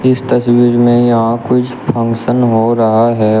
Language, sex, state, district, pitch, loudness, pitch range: Hindi, male, Uttar Pradesh, Shamli, 120 Hz, -11 LUFS, 115-125 Hz